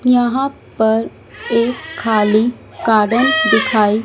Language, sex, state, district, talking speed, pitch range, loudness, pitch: Hindi, female, Madhya Pradesh, Dhar, 90 wpm, 215-245 Hz, -15 LUFS, 225 Hz